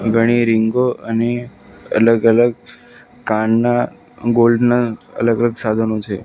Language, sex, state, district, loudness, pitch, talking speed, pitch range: Gujarati, male, Gujarat, Valsad, -16 LUFS, 115 Hz, 95 wpm, 110-120 Hz